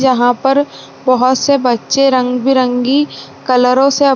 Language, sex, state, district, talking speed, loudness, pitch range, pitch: Hindi, female, Bihar, Saran, 130 wpm, -13 LUFS, 250-275 Hz, 260 Hz